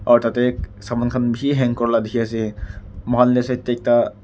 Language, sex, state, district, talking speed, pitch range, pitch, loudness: Nagamese, male, Nagaland, Kohima, 170 wpm, 110-125 Hz, 120 Hz, -19 LUFS